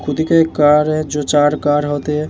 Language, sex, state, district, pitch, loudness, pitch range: Hindi, male, Bihar, Vaishali, 150 Hz, -15 LUFS, 145-155 Hz